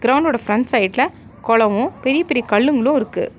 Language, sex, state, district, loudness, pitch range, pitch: Tamil, female, Tamil Nadu, Nilgiris, -17 LUFS, 225-280 Hz, 255 Hz